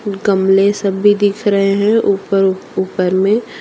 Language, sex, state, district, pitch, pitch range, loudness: Hindi, female, Jharkhand, Deoghar, 200 Hz, 195-205 Hz, -14 LUFS